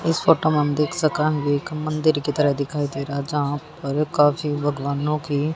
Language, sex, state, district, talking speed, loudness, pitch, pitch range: Hindi, female, Haryana, Jhajjar, 205 wpm, -22 LUFS, 150 Hz, 145-155 Hz